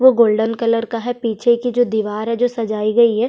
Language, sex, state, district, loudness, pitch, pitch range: Hindi, female, Chhattisgarh, Sukma, -17 LUFS, 230 Hz, 220-240 Hz